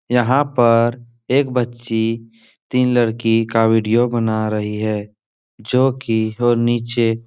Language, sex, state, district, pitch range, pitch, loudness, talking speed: Hindi, male, Bihar, Supaul, 110-120 Hz, 115 Hz, -18 LUFS, 130 wpm